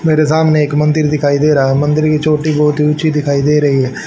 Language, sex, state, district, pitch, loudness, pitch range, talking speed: Hindi, male, Haryana, Charkhi Dadri, 150 Hz, -12 LUFS, 145-155 Hz, 265 wpm